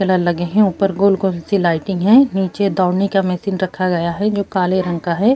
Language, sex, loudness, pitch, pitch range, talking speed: Urdu, female, -16 LUFS, 190 Hz, 180-200 Hz, 235 wpm